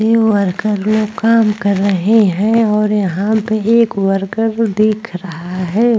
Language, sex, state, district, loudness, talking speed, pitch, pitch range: Hindi, female, Maharashtra, Chandrapur, -14 LUFS, 150 wpm, 210 Hz, 195-225 Hz